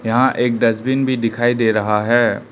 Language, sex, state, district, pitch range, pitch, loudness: Hindi, male, Arunachal Pradesh, Lower Dibang Valley, 115-120 Hz, 120 Hz, -17 LUFS